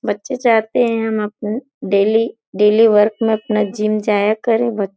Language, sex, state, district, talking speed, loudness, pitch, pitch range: Hindi, female, Uttar Pradesh, Gorakhpur, 180 wpm, -16 LUFS, 215 Hz, 210-230 Hz